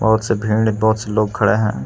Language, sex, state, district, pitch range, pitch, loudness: Hindi, male, Jharkhand, Palamu, 105-110 Hz, 110 Hz, -17 LUFS